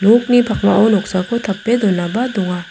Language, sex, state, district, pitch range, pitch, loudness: Garo, female, Meghalaya, South Garo Hills, 190-235 Hz, 215 Hz, -15 LUFS